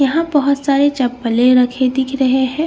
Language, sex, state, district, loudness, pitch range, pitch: Hindi, female, Bihar, Katihar, -15 LUFS, 255-280 Hz, 265 Hz